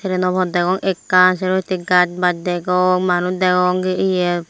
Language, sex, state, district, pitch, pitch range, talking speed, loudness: Chakma, female, Tripura, Unakoti, 185 Hz, 180-185 Hz, 175 wpm, -17 LUFS